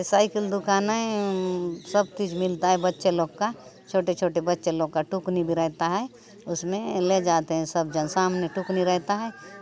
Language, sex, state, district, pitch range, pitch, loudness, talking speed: Halbi, female, Chhattisgarh, Bastar, 170-200 Hz, 185 Hz, -25 LUFS, 175 wpm